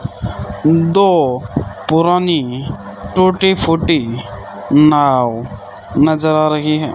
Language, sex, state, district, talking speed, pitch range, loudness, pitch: Hindi, male, Rajasthan, Bikaner, 80 wpm, 115-165 Hz, -14 LUFS, 145 Hz